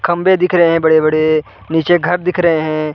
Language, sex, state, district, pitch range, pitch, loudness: Hindi, male, Uttar Pradesh, Varanasi, 155-175 Hz, 165 Hz, -13 LUFS